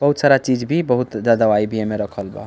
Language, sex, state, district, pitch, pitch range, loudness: Bhojpuri, male, Bihar, East Champaran, 115 Hz, 105-135 Hz, -18 LUFS